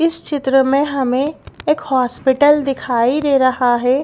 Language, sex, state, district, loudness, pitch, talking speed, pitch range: Hindi, female, Madhya Pradesh, Bhopal, -15 LUFS, 270 Hz, 150 wpm, 255-290 Hz